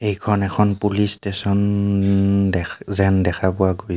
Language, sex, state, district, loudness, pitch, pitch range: Assamese, male, Assam, Kamrup Metropolitan, -19 LUFS, 100 Hz, 95-100 Hz